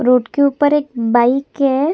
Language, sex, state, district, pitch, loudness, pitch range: Hindi, female, Chhattisgarh, Sukma, 275 Hz, -15 LUFS, 245-285 Hz